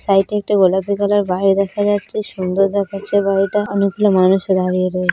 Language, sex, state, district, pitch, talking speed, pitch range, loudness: Bengali, female, West Bengal, Jhargram, 195 Hz, 165 wpm, 190-205 Hz, -16 LUFS